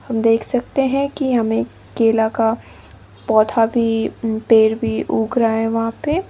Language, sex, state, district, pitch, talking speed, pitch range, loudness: Hindi, female, Nagaland, Dimapur, 225 Hz, 150 wpm, 220-240 Hz, -18 LUFS